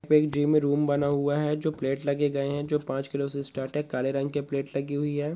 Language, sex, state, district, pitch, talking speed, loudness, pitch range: Hindi, male, Goa, North and South Goa, 145 Hz, 280 wpm, -27 LUFS, 140-150 Hz